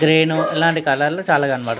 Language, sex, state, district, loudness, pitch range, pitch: Telugu, male, Telangana, Nalgonda, -17 LUFS, 135-160 Hz, 155 Hz